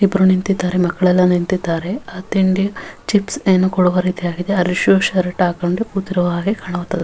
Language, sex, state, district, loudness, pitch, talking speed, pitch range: Kannada, female, Karnataka, Raichur, -17 LUFS, 185 Hz, 155 wpm, 180-195 Hz